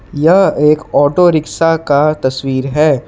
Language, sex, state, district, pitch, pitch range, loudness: Hindi, male, Jharkhand, Palamu, 150 Hz, 145-160 Hz, -12 LUFS